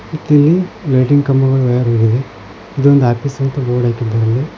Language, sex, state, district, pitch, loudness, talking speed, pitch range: Kannada, male, Karnataka, Koppal, 135 Hz, -13 LUFS, 155 wpm, 120-140 Hz